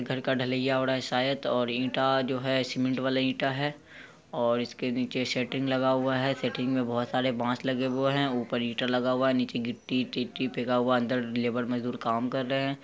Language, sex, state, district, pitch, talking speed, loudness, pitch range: Hindi, male, Bihar, Araria, 130 Hz, 220 wpm, -28 LUFS, 125-130 Hz